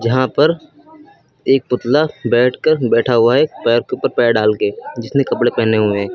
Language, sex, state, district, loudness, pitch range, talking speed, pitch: Hindi, male, Uttar Pradesh, Lucknow, -15 LUFS, 115-145 Hz, 175 wpm, 120 Hz